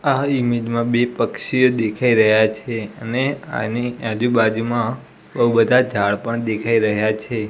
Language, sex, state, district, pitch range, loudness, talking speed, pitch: Gujarati, male, Gujarat, Gandhinagar, 110-120 Hz, -19 LUFS, 150 wpm, 115 Hz